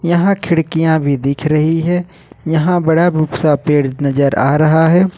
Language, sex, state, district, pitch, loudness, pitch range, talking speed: Hindi, male, Jharkhand, Ranchi, 160 Hz, -14 LUFS, 145-170 Hz, 160 wpm